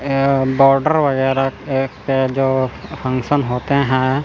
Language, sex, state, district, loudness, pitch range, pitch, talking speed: Hindi, male, Chandigarh, Chandigarh, -17 LUFS, 130-140 Hz, 135 Hz, 125 wpm